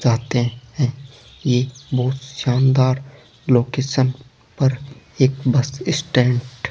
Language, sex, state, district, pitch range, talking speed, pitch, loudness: Hindi, male, Rajasthan, Jaipur, 125-135 Hz, 100 wpm, 130 Hz, -20 LUFS